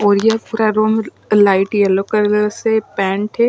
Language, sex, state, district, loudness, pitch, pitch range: Hindi, female, Maharashtra, Washim, -15 LUFS, 210 Hz, 200-220 Hz